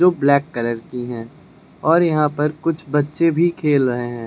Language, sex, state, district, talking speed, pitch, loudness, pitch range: Hindi, male, Uttar Pradesh, Lucknow, 195 wpm, 150 Hz, -19 LUFS, 125-165 Hz